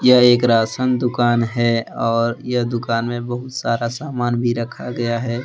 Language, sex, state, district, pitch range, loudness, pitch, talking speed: Hindi, male, Jharkhand, Deoghar, 115-125 Hz, -19 LUFS, 120 Hz, 175 wpm